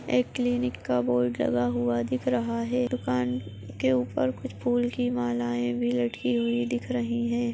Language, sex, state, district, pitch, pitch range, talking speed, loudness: Hindi, female, Maharashtra, Aurangabad, 120 Hz, 120-125 Hz, 175 wpm, -27 LUFS